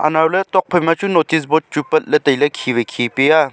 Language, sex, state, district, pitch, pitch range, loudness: Wancho, male, Arunachal Pradesh, Longding, 155 Hz, 145-165 Hz, -16 LUFS